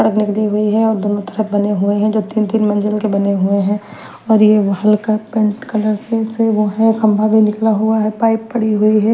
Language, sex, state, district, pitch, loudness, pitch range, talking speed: Hindi, female, Chandigarh, Chandigarh, 215 Hz, -15 LUFS, 210-220 Hz, 225 wpm